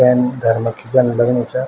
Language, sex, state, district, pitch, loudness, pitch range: Garhwali, male, Uttarakhand, Tehri Garhwal, 125 Hz, -16 LUFS, 120-125 Hz